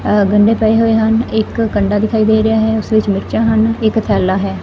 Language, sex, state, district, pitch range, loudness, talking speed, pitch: Punjabi, female, Punjab, Fazilka, 210-220 Hz, -13 LUFS, 235 wpm, 220 Hz